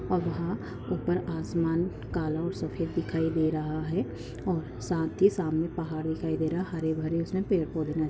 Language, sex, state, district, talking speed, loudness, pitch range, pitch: Hindi, female, Goa, North and South Goa, 185 wpm, -30 LUFS, 155-170 Hz, 160 Hz